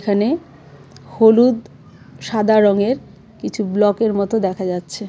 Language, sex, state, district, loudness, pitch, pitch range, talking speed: Bengali, female, Tripura, West Tripura, -17 LUFS, 210 Hz, 190-220 Hz, 105 wpm